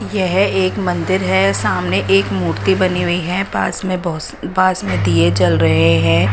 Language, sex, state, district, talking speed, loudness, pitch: Hindi, female, Odisha, Nuapada, 180 wpm, -16 LUFS, 140 Hz